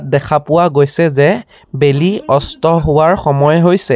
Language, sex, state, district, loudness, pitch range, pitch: Assamese, male, Assam, Sonitpur, -12 LUFS, 145-175 Hz, 155 Hz